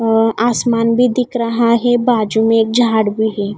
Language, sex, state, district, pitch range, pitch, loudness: Hindi, female, Odisha, Khordha, 220-240 Hz, 230 Hz, -14 LUFS